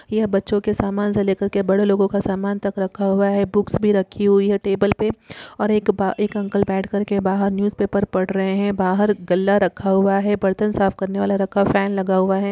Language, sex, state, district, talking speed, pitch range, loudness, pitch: Hindi, female, Chhattisgarh, Kabirdham, 235 wpm, 195-205 Hz, -19 LUFS, 200 Hz